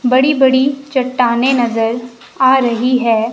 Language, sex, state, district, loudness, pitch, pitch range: Hindi, male, Himachal Pradesh, Shimla, -13 LUFS, 255 Hz, 235-265 Hz